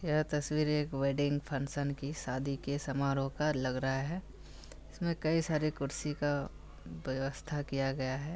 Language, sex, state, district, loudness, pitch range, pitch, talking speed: Hindi, male, Bihar, Kishanganj, -35 LUFS, 135-150 Hz, 140 Hz, 160 wpm